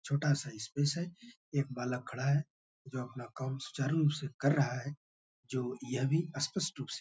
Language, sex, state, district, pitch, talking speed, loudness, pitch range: Hindi, male, Bihar, Bhagalpur, 140 Hz, 205 wpm, -35 LUFS, 130-150 Hz